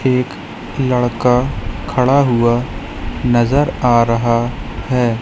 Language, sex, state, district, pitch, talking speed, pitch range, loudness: Hindi, female, Madhya Pradesh, Katni, 120 Hz, 90 wpm, 115-125 Hz, -16 LUFS